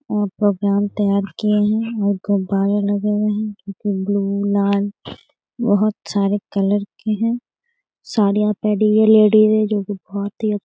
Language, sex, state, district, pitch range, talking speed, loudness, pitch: Hindi, female, Bihar, Gaya, 200-215 Hz, 145 wpm, -18 LUFS, 205 Hz